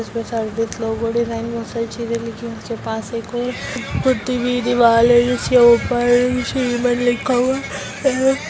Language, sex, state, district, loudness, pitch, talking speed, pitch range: Hindi, female, Bihar, Muzaffarpur, -18 LUFS, 240 Hz, 155 wpm, 230-245 Hz